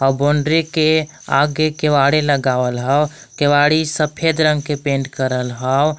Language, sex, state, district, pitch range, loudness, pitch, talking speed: Magahi, male, Jharkhand, Palamu, 135-155 Hz, -17 LUFS, 145 Hz, 130 wpm